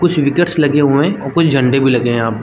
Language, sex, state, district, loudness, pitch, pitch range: Hindi, male, Chhattisgarh, Balrampur, -13 LUFS, 140 Hz, 130-165 Hz